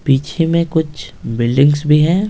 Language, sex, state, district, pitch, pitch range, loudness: Hindi, male, Bihar, Patna, 150 Hz, 140-165 Hz, -15 LUFS